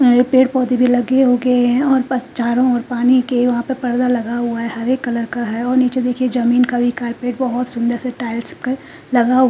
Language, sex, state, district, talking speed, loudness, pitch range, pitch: Hindi, female, Punjab, Fazilka, 215 wpm, -17 LUFS, 240-255 Hz, 245 Hz